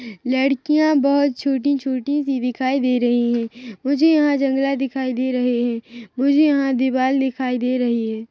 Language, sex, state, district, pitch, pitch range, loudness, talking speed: Hindi, female, Chhattisgarh, Rajnandgaon, 260 Hz, 245-275 Hz, -19 LUFS, 160 wpm